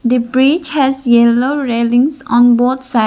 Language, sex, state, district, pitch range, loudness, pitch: English, female, Arunachal Pradesh, Lower Dibang Valley, 240-270 Hz, -12 LUFS, 250 Hz